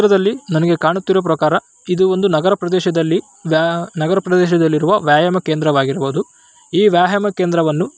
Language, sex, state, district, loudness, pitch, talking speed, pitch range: Kannada, male, Karnataka, Raichur, -15 LUFS, 180 Hz, 130 wpm, 160-195 Hz